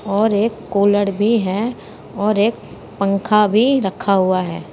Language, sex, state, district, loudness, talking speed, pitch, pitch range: Hindi, female, Uttar Pradesh, Saharanpur, -17 LUFS, 150 wpm, 205 Hz, 195-220 Hz